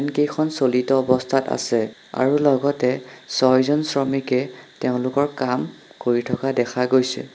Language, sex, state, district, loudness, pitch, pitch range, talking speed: Assamese, male, Assam, Sonitpur, -21 LUFS, 130 Hz, 125-140 Hz, 120 wpm